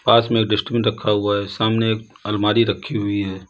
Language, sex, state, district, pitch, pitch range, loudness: Hindi, male, Uttar Pradesh, Lalitpur, 105 Hz, 100-115 Hz, -20 LUFS